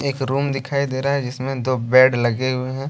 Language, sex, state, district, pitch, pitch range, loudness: Hindi, male, Jharkhand, Deoghar, 130 Hz, 130-140 Hz, -20 LUFS